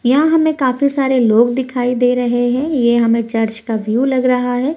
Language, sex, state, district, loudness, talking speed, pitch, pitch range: Hindi, female, Uttar Pradesh, Budaun, -15 LUFS, 215 wpm, 250 Hz, 235-265 Hz